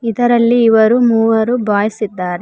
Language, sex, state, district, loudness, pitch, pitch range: Kannada, female, Karnataka, Koppal, -12 LUFS, 225 Hz, 215-235 Hz